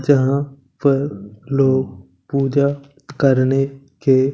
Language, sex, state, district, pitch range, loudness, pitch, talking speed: Hindi, male, Punjab, Kapurthala, 130-140 Hz, -18 LUFS, 135 Hz, 85 wpm